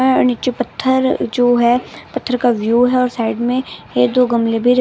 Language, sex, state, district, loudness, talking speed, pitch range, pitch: Hindi, female, Bihar, West Champaran, -16 LUFS, 200 wpm, 235-255 Hz, 245 Hz